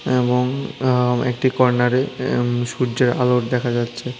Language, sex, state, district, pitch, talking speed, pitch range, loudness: Bengali, male, Tripura, West Tripura, 125 Hz, 130 wpm, 120-125 Hz, -19 LUFS